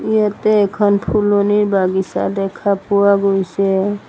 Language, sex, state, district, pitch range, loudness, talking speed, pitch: Assamese, female, Assam, Sonitpur, 195-205 Hz, -16 LUFS, 105 wpm, 200 Hz